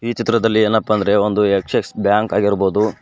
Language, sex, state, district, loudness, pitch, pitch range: Kannada, male, Karnataka, Koppal, -16 LUFS, 105 Hz, 100-110 Hz